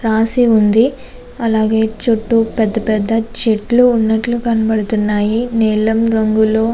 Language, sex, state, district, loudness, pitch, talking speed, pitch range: Telugu, female, Andhra Pradesh, Chittoor, -14 LUFS, 225 Hz, 90 wpm, 220-230 Hz